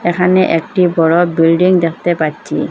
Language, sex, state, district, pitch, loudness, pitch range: Bengali, female, Assam, Hailakandi, 175 Hz, -13 LUFS, 165-180 Hz